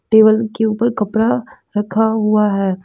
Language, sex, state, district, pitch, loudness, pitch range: Hindi, female, Jharkhand, Deoghar, 215 Hz, -16 LUFS, 210-220 Hz